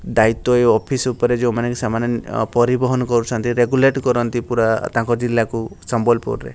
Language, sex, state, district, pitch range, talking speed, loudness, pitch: Odia, male, Odisha, Sambalpur, 115-125 Hz, 145 wpm, -18 LUFS, 120 Hz